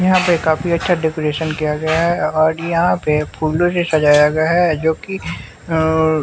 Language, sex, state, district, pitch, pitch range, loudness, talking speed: Hindi, male, Bihar, West Champaran, 160 Hz, 155-170 Hz, -16 LUFS, 165 wpm